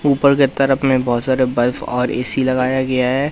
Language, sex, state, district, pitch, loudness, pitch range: Hindi, male, Madhya Pradesh, Katni, 130 Hz, -17 LUFS, 125-135 Hz